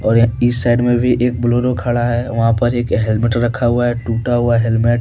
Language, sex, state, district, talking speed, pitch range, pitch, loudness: Hindi, male, Jharkhand, Deoghar, 240 wpm, 115-120 Hz, 120 Hz, -15 LUFS